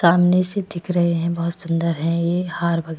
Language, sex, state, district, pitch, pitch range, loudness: Hindi, female, Himachal Pradesh, Shimla, 170 Hz, 170-175 Hz, -20 LUFS